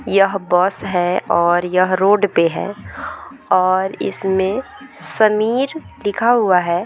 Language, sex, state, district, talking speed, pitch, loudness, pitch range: Hindi, female, Bihar, Vaishali, 130 wpm, 190 Hz, -17 LUFS, 180-205 Hz